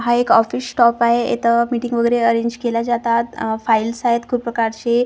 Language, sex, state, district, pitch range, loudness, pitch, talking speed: Marathi, female, Maharashtra, Gondia, 230-240 Hz, -17 LUFS, 235 Hz, 225 wpm